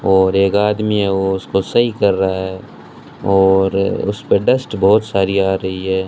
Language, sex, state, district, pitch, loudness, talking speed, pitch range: Hindi, male, Rajasthan, Bikaner, 95 Hz, -16 LUFS, 180 wpm, 95-100 Hz